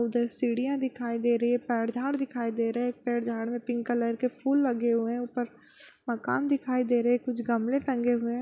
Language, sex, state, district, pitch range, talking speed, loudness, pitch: Hindi, female, Bihar, Bhagalpur, 235-250 Hz, 220 wpm, -29 LUFS, 240 Hz